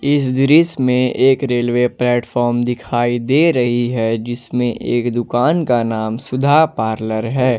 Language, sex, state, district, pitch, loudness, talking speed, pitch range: Hindi, male, Jharkhand, Ranchi, 120 Hz, -16 LUFS, 140 wpm, 120-130 Hz